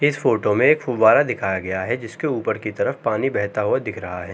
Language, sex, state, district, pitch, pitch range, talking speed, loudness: Hindi, male, Uttar Pradesh, Jalaun, 105 Hz, 95-120 Hz, 250 wpm, -20 LUFS